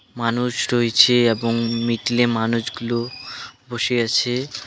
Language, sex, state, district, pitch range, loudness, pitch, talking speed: Bengali, male, West Bengal, Alipurduar, 115-120 Hz, -19 LUFS, 120 Hz, 90 wpm